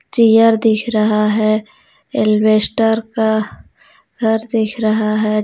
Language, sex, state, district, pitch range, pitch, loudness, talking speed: Hindi, female, Jharkhand, Ranchi, 215-225 Hz, 220 Hz, -15 LUFS, 120 wpm